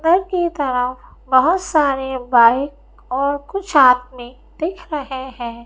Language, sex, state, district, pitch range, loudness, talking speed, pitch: Hindi, female, Madhya Pradesh, Bhopal, 255-325 Hz, -17 LUFS, 125 wpm, 270 Hz